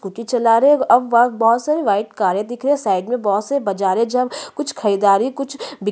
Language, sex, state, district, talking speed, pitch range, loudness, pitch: Hindi, female, Chhattisgarh, Sukma, 235 wpm, 200-265 Hz, -17 LUFS, 235 Hz